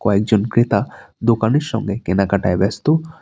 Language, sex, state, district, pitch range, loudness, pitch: Bengali, male, West Bengal, Alipurduar, 100-120 Hz, -18 LUFS, 105 Hz